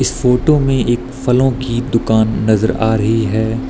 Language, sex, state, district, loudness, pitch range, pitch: Hindi, male, Uttar Pradesh, Lucknow, -15 LUFS, 110-130 Hz, 120 Hz